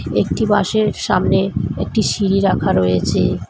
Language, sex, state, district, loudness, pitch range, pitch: Bengali, female, West Bengal, Alipurduar, -17 LUFS, 185-210 Hz, 200 Hz